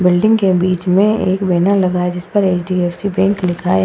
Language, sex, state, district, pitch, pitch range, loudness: Hindi, female, Uttar Pradesh, Budaun, 185 Hz, 180-195 Hz, -15 LUFS